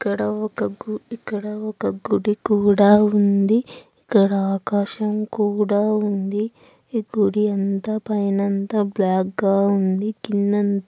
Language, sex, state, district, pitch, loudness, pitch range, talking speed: Telugu, female, Andhra Pradesh, Anantapur, 205 Hz, -20 LUFS, 200-215 Hz, 115 wpm